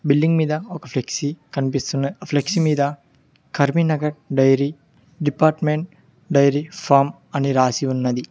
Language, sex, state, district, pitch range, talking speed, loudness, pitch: Telugu, male, Telangana, Mahabubabad, 140-155 Hz, 110 wpm, -20 LUFS, 145 Hz